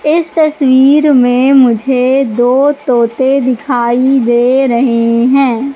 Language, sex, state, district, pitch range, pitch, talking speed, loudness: Hindi, female, Madhya Pradesh, Katni, 245-275 Hz, 260 Hz, 105 wpm, -10 LUFS